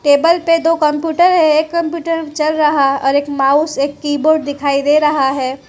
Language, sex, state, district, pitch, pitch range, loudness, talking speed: Hindi, female, Gujarat, Valsad, 300 Hz, 280-325 Hz, -14 LUFS, 200 wpm